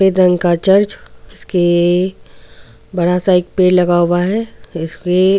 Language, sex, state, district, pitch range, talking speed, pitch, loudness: Hindi, female, Goa, North and South Goa, 175-190 Hz, 135 wpm, 180 Hz, -14 LUFS